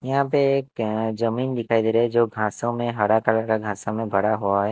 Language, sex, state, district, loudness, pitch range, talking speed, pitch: Hindi, male, Himachal Pradesh, Shimla, -22 LUFS, 110-120 Hz, 240 wpm, 115 Hz